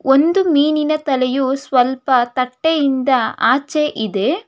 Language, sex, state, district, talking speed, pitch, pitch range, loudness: Kannada, female, Karnataka, Bangalore, 80 wpm, 270 Hz, 255-305 Hz, -16 LUFS